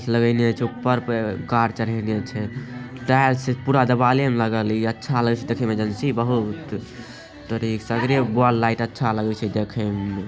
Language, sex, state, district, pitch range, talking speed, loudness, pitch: Angika, male, Bihar, Begusarai, 110-125 Hz, 180 wpm, -22 LUFS, 115 Hz